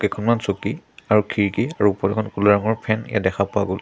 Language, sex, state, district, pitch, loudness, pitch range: Assamese, male, Assam, Sonitpur, 105 Hz, -21 LUFS, 100-110 Hz